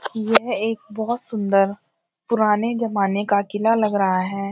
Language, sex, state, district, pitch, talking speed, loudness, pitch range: Hindi, female, Uttarakhand, Uttarkashi, 210 Hz, 145 wpm, -21 LUFS, 200-225 Hz